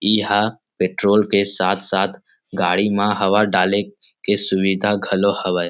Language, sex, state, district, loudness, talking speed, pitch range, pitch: Chhattisgarhi, male, Chhattisgarh, Rajnandgaon, -18 LUFS, 135 wpm, 95-105 Hz, 100 Hz